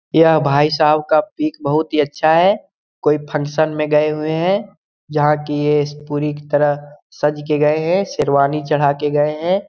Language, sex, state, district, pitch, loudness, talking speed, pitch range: Hindi, male, Bihar, Lakhisarai, 150 Hz, -17 LUFS, 185 wpm, 145-155 Hz